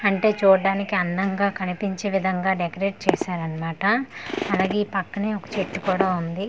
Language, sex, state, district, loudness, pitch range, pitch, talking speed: Telugu, female, Andhra Pradesh, Manyam, -23 LUFS, 185-200 Hz, 195 Hz, 130 wpm